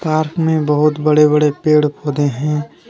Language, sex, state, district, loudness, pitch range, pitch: Hindi, male, Jharkhand, Deoghar, -15 LUFS, 150-155 Hz, 150 Hz